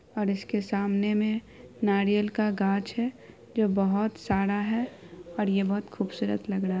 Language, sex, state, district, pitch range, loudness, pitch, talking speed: Hindi, female, Bihar, Araria, 195-215 Hz, -28 LUFS, 205 Hz, 165 wpm